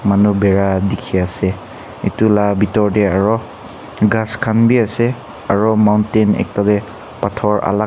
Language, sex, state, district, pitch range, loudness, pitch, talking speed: Nagamese, male, Nagaland, Kohima, 100-110 Hz, -15 LUFS, 105 Hz, 145 wpm